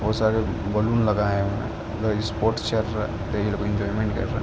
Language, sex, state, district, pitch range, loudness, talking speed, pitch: Hindi, male, Uttar Pradesh, Ghazipur, 105-110 Hz, -24 LUFS, 80 wpm, 110 Hz